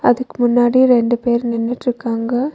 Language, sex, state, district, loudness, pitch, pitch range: Tamil, female, Tamil Nadu, Nilgiris, -16 LUFS, 240 Hz, 235-245 Hz